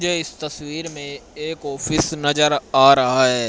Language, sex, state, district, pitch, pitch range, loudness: Hindi, male, Haryana, Rohtak, 150 Hz, 135-155 Hz, -18 LUFS